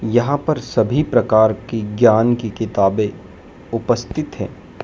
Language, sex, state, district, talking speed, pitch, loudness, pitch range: Hindi, male, Madhya Pradesh, Dhar, 125 wpm, 115 Hz, -18 LUFS, 110-120 Hz